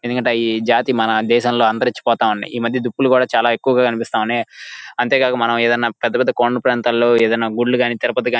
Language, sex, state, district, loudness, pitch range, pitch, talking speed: Telugu, male, Andhra Pradesh, Guntur, -16 LUFS, 115-125 Hz, 120 Hz, 205 wpm